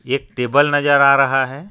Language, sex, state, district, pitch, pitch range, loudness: Hindi, male, Jharkhand, Ranchi, 140 Hz, 135-145 Hz, -15 LUFS